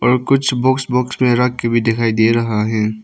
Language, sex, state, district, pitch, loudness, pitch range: Hindi, male, Arunachal Pradesh, Papum Pare, 120 Hz, -16 LUFS, 115-125 Hz